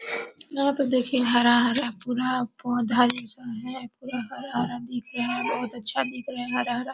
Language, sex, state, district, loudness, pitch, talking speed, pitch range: Hindi, female, Bihar, Araria, -22 LUFS, 245 Hz, 165 wpm, 240-260 Hz